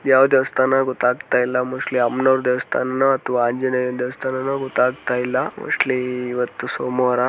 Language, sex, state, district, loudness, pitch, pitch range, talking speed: Kannada, male, Karnataka, Mysore, -20 LUFS, 125 Hz, 125-130 Hz, 125 wpm